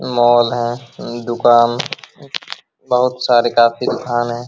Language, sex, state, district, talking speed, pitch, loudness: Hindi, male, Bihar, Araria, 120 wpm, 120 Hz, -15 LUFS